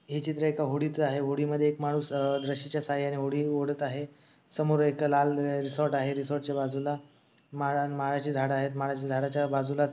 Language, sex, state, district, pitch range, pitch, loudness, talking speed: Marathi, male, Maharashtra, Sindhudurg, 140-145 Hz, 145 Hz, -30 LUFS, 170 wpm